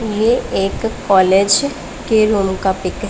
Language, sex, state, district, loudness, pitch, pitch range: Hindi, female, Punjab, Pathankot, -15 LUFS, 200 Hz, 190-225 Hz